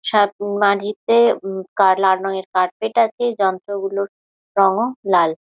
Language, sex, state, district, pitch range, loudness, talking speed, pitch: Bengali, female, West Bengal, Jhargram, 190-215 Hz, -18 LUFS, 110 wpm, 200 Hz